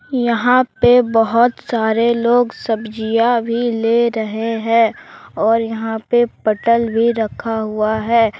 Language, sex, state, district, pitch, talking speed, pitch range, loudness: Hindi, male, Jharkhand, Deoghar, 230 Hz, 130 wpm, 225-235 Hz, -16 LUFS